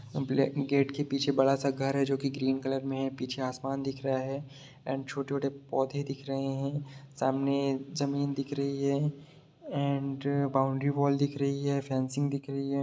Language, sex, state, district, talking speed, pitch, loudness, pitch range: Hindi, male, Bihar, Sitamarhi, 190 wpm, 140 Hz, -31 LUFS, 135-140 Hz